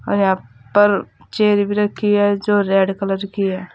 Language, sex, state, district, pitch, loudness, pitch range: Hindi, female, Uttar Pradesh, Saharanpur, 200 Hz, -17 LUFS, 195-205 Hz